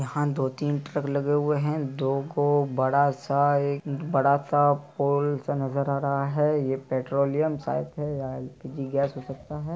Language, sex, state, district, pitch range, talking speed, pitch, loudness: Hindi, male, Bihar, Araria, 135-145 Hz, 185 wpm, 140 Hz, -26 LUFS